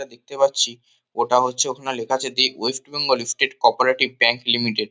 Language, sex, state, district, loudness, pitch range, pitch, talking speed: Bengali, male, West Bengal, Kolkata, -20 LUFS, 120-130 Hz, 125 Hz, 195 wpm